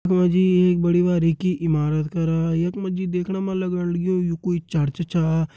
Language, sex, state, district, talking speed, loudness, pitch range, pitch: Hindi, male, Uttarakhand, Uttarkashi, 205 wpm, -21 LUFS, 165-180 Hz, 175 Hz